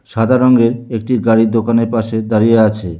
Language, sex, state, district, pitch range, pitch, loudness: Bengali, male, West Bengal, Alipurduar, 110-115 Hz, 115 Hz, -13 LUFS